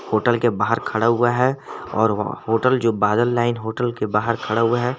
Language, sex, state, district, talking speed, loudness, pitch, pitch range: Hindi, male, Jharkhand, Garhwa, 205 wpm, -20 LUFS, 115 Hz, 110-120 Hz